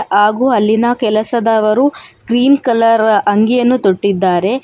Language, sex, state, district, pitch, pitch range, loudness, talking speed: Kannada, female, Karnataka, Bangalore, 225 Hz, 210-245 Hz, -12 LUFS, 90 wpm